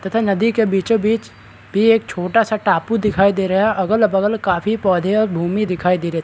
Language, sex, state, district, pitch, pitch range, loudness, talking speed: Hindi, male, Bihar, Araria, 200 Hz, 180-220 Hz, -17 LUFS, 190 wpm